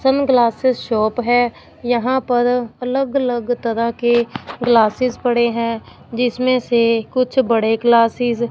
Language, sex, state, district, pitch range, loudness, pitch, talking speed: Hindi, female, Punjab, Fazilka, 230-250 Hz, -17 LUFS, 240 Hz, 125 wpm